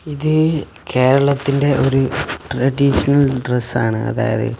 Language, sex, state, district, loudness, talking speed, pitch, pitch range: Malayalam, male, Kerala, Kasaragod, -17 LUFS, 90 wpm, 135 Hz, 125-140 Hz